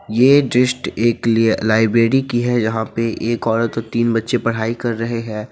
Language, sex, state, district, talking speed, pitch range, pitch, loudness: Hindi, male, Bihar, Sitamarhi, 195 wpm, 115-120 Hz, 115 Hz, -17 LUFS